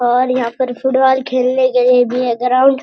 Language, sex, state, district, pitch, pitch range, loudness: Hindi, male, Uttarakhand, Uttarkashi, 255 Hz, 250-260 Hz, -14 LUFS